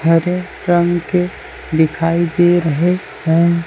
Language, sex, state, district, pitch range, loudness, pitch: Hindi, male, Chhattisgarh, Raipur, 165-175 Hz, -16 LUFS, 170 Hz